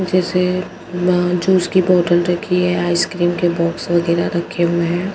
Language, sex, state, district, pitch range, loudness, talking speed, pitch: Hindi, female, Uttar Pradesh, Varanasi, 175-180 Hz, -17 LUFS, 165 wpm, 175 Hz